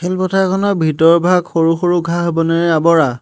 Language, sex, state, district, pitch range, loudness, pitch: Assamese, male, Assam, Hailakandi, 165-180 Hz, -14 LUFS, 170 Hz